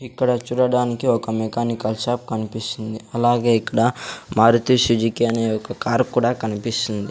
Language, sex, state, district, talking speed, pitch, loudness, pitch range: Telugu, male, Andhra Pradesh, Sri Satya Sai, 120 wpm, 115 Hz, -20 LUFS, 110-120 Hz